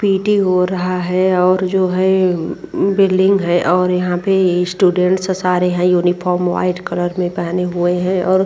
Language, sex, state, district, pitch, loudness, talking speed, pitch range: Hindi, female, Uttar Pradesh, Muzaffarnagar, 180 Hz, -15 LUFS, 175 wpm, 180-185 Hz